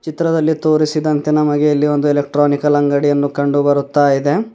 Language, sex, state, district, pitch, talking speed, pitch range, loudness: Kannada, male, Karnataka, Bidar, 145 Hz, 145 wpm, 145-155 Hz, -15 LUFS